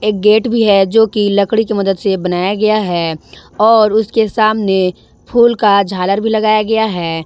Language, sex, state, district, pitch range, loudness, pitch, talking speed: Hindi, female, Jharkhand, Ranchi, 195-220 Hz, -13 LUFS, 210 Hz, 180 wpm